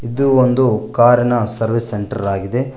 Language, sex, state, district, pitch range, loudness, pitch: Kannada, male, Karnataka, Koppal, 110-125 Hz, -15 LUFS, 120 Hz